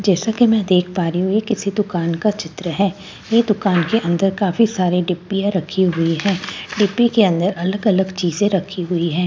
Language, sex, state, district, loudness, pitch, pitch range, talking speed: Hindi, female, Delhi, New Delhi, -18 LUFS, 190 Hz, 180-205 Hz, 220 wpm